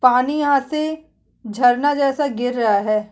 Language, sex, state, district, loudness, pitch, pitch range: Hindi, female, Uttarakhand, Tehri Garhwal, -18 LUFS, 255 Hz, 235-290 Hz